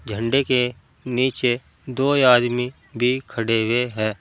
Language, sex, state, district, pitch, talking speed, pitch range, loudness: Hindi, male, Uttar Pradesh, Saharanpur, 125 Hz, 130 wpm, 115-130 Hz, -21 LUFS